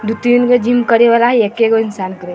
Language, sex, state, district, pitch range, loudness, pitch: Hindi, female, Bihar, Vaishali, 220-240 Hz, -12 LUFS, 230 Hz